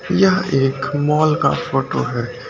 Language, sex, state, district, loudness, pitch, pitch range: Hindi, male, Uttar Pradesh, Lucknow, -18 LUFS, 140 Hz, 135-155 Hz